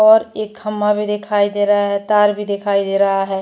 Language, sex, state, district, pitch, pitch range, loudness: Hindi, female, Uttar Pradesh, Jyotiba Phule Nagar, 205 Hz, 200-210 Hz, -16 LUFS